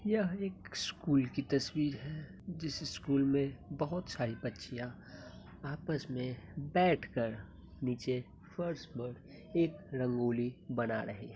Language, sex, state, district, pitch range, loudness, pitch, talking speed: Hindi, male, Bihar, Muzaffarpur, 120-155 Hz, -36 LUFS, 135 Hz, 125 wpm